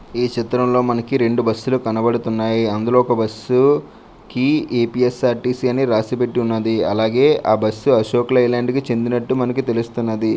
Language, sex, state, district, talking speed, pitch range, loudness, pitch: Telugu, male, Andhra Pradesh, Srikakulam, 150 wpm, 115-125 Hz, -18 LUFS, 120 Hz